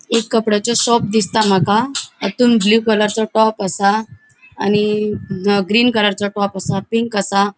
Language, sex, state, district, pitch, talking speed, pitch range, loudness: Konkani, female, Goa, North and South Goa, 210 Hz, 140 wpm, 200-225 Hz, -16 LUFS